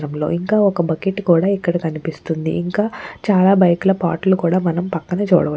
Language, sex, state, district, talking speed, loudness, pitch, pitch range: Telugu, female, Andhra Pradesh, Chittoor, 160 wpm, -18 LUFS, 175 Hz, 165-195 Hz